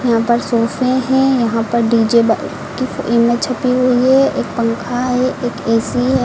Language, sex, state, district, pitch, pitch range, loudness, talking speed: Hindi, female, Uttar Pradesh, Lucknow, 245 Hz, 230-255 Hz, -15 LUFS, 180 wpm